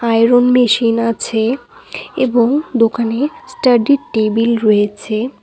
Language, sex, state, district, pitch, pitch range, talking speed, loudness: Bengali, female, West Bengal, Cooch Behar, 235 Hz, 225-260 Hz, 90 wpm, -14 LUFS